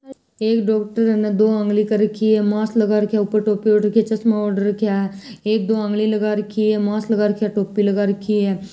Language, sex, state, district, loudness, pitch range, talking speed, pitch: Hindi, female, Rajasthan, Churu, -19 LUFS, 210-220 Hz, 240 wpm, 215 Hz